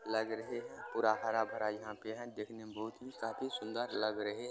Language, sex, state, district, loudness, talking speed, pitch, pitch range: Hindi, male, Bihar, Supaul, -39 LUFS, 215 wpm, 110 Hz, 110-115 Hz